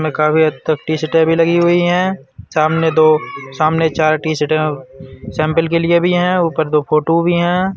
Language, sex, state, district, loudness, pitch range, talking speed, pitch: Bundeli, male, Uttar Pradesh, Budaun, -14 LUFS, 155-170 Hz, 175 wpm, 155 Hz